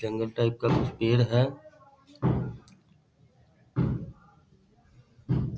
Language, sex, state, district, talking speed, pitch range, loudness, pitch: Hindi, male, Bihar, Saharsa, 75 wpm, 115-135 Hz, -28 LUFS, 120 Hz